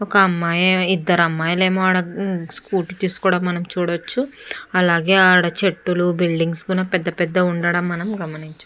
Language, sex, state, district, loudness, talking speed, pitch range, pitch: Telugu, female, Andhra Pradesh, Chittoor, -18 LUFS, 140 wpm, 170-185 Hz, 180 Hz